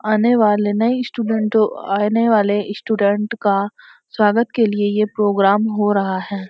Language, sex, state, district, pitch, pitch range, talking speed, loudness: Hindi, female, Uttarakhand, Uttarkashi, 210 Hz, 205-220 Hz, 150 wpm, -17 LUFS